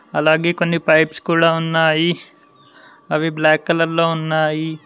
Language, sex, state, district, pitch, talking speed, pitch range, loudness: Telugu, male, Telangana, Mahabubabad, 160 Hz, 125 wpm, 155-165 Hz, -17 LUFS